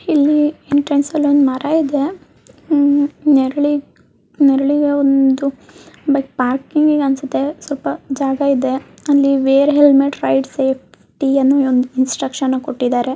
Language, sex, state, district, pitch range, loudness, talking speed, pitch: Kannada, female, Karnataka, Mysore, 270-290 Hz, -15 LUFS, 95 wpm, 280 Hz